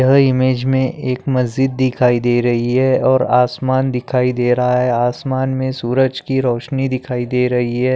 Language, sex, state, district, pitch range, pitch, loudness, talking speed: Hindi, male, Maharashtra, Aurangabad, 125-130 Hz, 130 Hz, -16 LUFS, 180 wpm